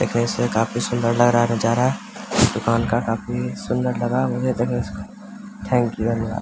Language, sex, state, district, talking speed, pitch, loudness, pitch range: Hindi, male, Bihar, Samastipur, 150 wpm, 120 Hz, -21 LUFS, 110-120 Hz